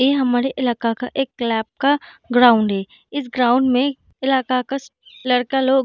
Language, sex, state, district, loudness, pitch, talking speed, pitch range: Hindi, female, Bihar, Darbhanga, -19 LUFS, 255 Hz, 175 wpm, 245-270 Hz